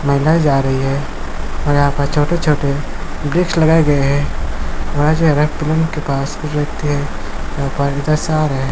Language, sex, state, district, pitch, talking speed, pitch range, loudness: Hindi, male, Chhattisgarh, Bilaspur, 145 Hz, 130 wpm, 140-155 Hz, -17 LUFS